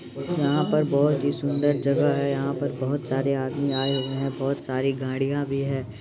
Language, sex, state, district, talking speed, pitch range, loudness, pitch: Maithili, male, Bihar, Supaul, 210 wpm, 130-140 Hz, -25 LUFS, 135 Hz